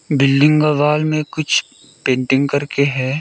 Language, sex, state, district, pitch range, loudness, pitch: Hindi, male, Arunachal Pradesh, Lower Dibang Valley, 135-150 Hz, -16 LUFS, 145 Hz